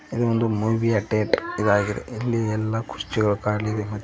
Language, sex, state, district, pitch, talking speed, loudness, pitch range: Kannada, male, Karnataka, Koppal, 110 Hz, 180 wpm, -23 LUFS, 105-115 Hz